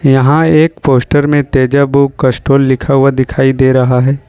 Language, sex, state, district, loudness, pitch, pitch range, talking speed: Hindi, male, Jharkhand, Ranchi, -10 LUFS, 135 Hz, 130-145 Hz, 170 wpm